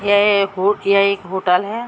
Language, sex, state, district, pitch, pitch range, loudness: Hindi, female, Jharkhand, Sahebganj, 200 Hz, 190-205 Hz, -16 LUFS